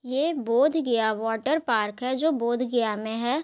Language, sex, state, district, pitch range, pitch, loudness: Hindi, female, Bihar, Gaya, 225-280 Hz, 245 Hz, -25 LUFS